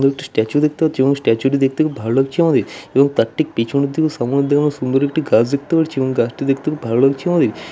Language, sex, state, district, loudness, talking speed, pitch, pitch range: Bengali, male, West Bengal, Dakshin Dinajpur, -17 LUFS, 225 wpm, 140 Hz, 130-150 Hz